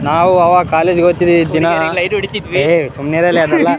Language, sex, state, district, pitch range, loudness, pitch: Kannada, male, Karnataka, Raichur, 160-175 Hz, -12 LUFS, 170 Hz